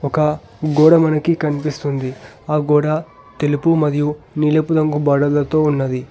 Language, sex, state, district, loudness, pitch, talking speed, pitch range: Telugu, male, Telangana, Hyderabad, -17 LUFS, 150 Hz, 130 wpm, 145-155 Hz